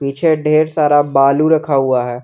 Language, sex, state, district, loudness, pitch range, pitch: Hindi, male, Jharkhand, Garhwa, -13 LUFS, 135-155 Hz, 145 Hz